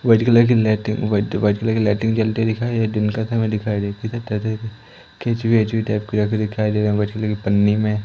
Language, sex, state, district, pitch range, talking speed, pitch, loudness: Hindi, male, Madhya Pradesh, Umaria, 105-110 Hz, 240 wpm, 110 Hz, -19 LUFS